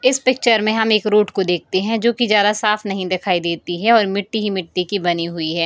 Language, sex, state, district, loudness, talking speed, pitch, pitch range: Hindi, female, Bihar, East Champaran, -17 LUFS, 265 wpm, 205 Hz, 180-220 Hz